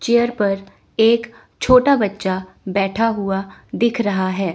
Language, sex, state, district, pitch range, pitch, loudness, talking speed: Hindi, female, Chandigarh, Chandigarh, 195-235 Hz, 205 Hz, -18 LUFS, 130 wpm